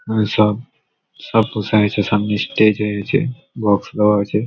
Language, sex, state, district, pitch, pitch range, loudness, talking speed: Bengali, male, West Bengal, Malda, 105 Hz, 105-110 Hz, -17 LUFS, 105 wpm